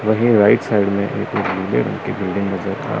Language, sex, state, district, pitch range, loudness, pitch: Hindi, male, Chandigarh, Chandigarh, 100-110 Hz, -18 LUFS, 100 Hz